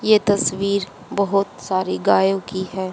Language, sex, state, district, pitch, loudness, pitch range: Hindi, female, Haryana, Jhajjar, 195 Hz, -20 LUFS, 190-200 Hz